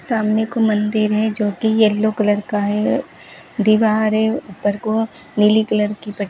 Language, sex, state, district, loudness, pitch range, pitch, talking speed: Hindi, female, Rajasthan, Bikaner, -18 LUFS, 210-220 Hz, 215 Hz, 180 wpm